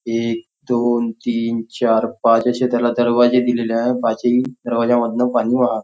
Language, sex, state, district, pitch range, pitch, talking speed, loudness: Marathi, male, Maharashtra, Nagpur, 115-120 Hz, 120 Hz, 145 wpm, -18 LUFS